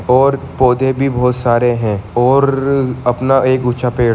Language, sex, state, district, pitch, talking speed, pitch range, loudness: Hindi, male, Bihar, Sitamarhi, 125 Hz, 160 wpm, 120-135 Hz, -14 LUFS